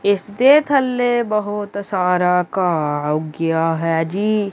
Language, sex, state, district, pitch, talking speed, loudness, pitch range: Punjabi, male, Punjab, Kapurthala, 195 Hz, 120 wpm, -18 LUFS, 165-215 Hz